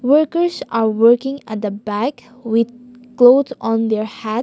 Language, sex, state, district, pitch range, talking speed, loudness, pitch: English, female, Nagaland, Kohima, 220-260 Hz, 150 wpm, -17 LUFS, 245 Hz